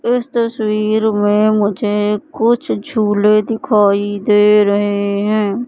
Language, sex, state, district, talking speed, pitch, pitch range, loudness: Hindi, female, Madhya Pradesh, Katni, 105 wpm, 210 Hz, 205-220 Hz, -14 LUFS